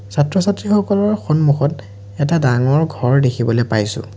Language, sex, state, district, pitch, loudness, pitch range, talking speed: Assamese, male, Assam, Sonitpur, 140 Hz, -16 LUFS, 115-160 Hz, 115 wpm